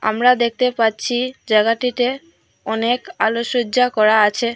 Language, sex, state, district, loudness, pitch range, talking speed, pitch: Bengali, female, Assam, Hailakandi, -17 LUFS, 220-250 Hz, 105 wpm, 235 Hz